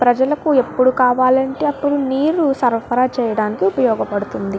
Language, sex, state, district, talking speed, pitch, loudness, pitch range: Telugu, female, Andhra Pradesh, Guntur, 105 wpm, 255 Hz, -16 LUFS, 235-275 Hz